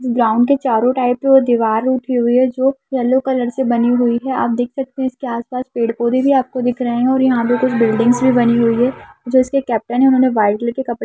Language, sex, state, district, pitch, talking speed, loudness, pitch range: Hindi, female, Bihar, Madhepura, 250 Hz, 255 wpm, -15 LUFS, 235-260 Hz